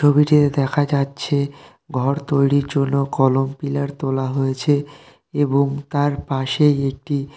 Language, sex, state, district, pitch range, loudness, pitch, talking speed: Bengali, male, West Bengal, North 24 Parganas, 135-145 Hz, -19 LUFS, 140 Hz, 115 wpm